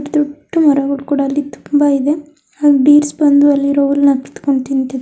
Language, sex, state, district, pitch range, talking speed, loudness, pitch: Kannada, male, Karnataka, Mysore, 275-295 Hz, 145 wpm, -13 LUFS, 285 Hz